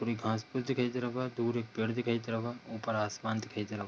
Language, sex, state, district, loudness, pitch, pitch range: Hindi, male, Bihar, Darbhanga, -35 LUFS, 115 Hz, 110-120 Hz